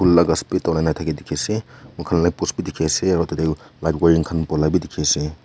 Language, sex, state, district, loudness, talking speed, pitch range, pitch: Nagamese, male, Nagaland, Kohima, -20 LUFS, 200 wpm, 80-85 Hz, 80 Hz